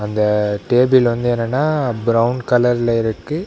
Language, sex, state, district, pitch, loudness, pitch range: Tamil, male, Tamil Nadu, Namakkal, 120 Hz, -16 LUFS, 115-125 Hz